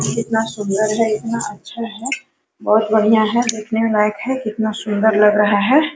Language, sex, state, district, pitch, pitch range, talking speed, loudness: Hindi, female, Bihar, Araria, 220 Hz, 215-235 Hz, 170 wpm, -17 LUFS